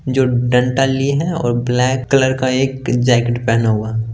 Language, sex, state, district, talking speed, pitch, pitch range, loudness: Hindi, male, Bihar, Gaya, 145 wpm, 125 Hz, 120-135 Hz, -16 LUFS